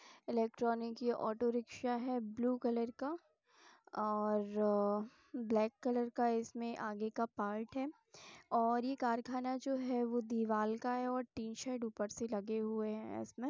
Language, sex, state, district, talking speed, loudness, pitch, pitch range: Hindi, female, Bihar, Sitamarhi, 155 wpm, -39 LUFS, 235 Hz, 220-250 Hz